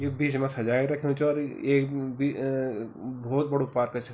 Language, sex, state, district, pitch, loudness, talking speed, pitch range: Garhwali, male, Uttarakhand, Tehri Garhwal, 135 Hz, -28 LUFS, 205 wpm, 130-140 Hz